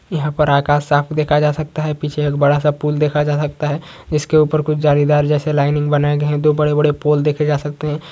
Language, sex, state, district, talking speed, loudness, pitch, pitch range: Hindi, male, West Bengal, Kolkata, 245 wpm, -16 LUFS, 150 Hz, 145-150 Hz